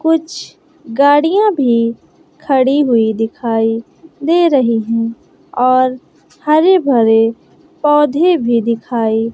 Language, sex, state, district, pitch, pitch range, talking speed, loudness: Hindi, female, Bihar, West Champaran, 260 Hz, 230-320 Hz, 95 wpm, -13 LUFS